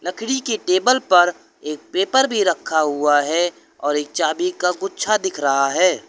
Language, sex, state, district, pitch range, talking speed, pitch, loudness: Hindi, male, Uttar Pradesh, Lucknow, 150-195 Hz, 175 wpm, 180 Hz, -19 LUFS